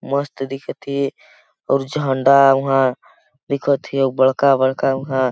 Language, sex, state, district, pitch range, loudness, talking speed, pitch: Awadhi, male, Chhattisgarh, Balrampur, 135-140 Hz, -18 LUFS, 100 wpm, 135 Hz